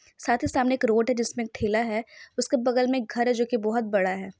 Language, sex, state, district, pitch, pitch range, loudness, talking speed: Hindi, female, Bihar, Saran, 240 Hz, 225-255 Hz, -25 LUFS, 285 wpm